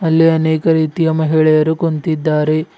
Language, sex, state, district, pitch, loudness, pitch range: Kannada, male, Karnataka, Bidar, 160 Hz, -14 LUFS, 155-165 Hz